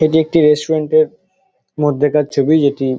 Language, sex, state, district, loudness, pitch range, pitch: Bengali, male, West Bengal, Dakshin Dinajpur, -14 LUFS, 145-160 Hz, 155 Hz